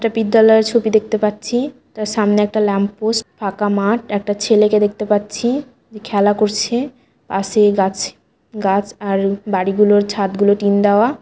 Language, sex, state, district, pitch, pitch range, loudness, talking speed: Bengali, female, West Bengal, Jalpaiguri, 210 Hz, 205-225 Hz, -16 LUFS, 150 wpm